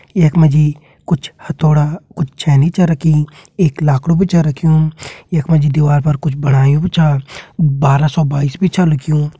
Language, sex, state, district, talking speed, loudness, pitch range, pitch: Garhwali, male, Uttarakhand, Tehri Garhwal, 185 wpm, -13 LUFS, 145-165 Hz, 155 Hz